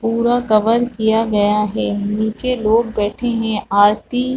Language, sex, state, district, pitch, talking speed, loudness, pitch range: Hindi, female, Chhattisgarh, Balrampur, 220 Hz, 165 wpm, -17 LUFS, 210-235 Hz